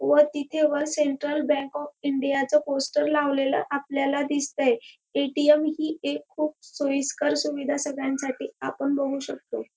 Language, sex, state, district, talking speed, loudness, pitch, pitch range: Marathi, female, Maharashtra, Dhule, 135 wpm, -25 LUFS, 285 Hz, 275-295 Hz